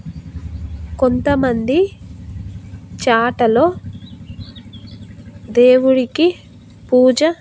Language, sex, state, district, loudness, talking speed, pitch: Telugu, female, Andhra Pradesh, Annamaya, -15 LUFS, 30 wpm, 230 Hz